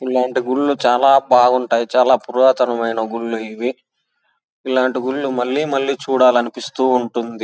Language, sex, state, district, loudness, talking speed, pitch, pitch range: Telugu, male, Andhra Pradesh, Anantapur, -17 LUFS, 120 wpm, 125 Hz, 120-130 Hz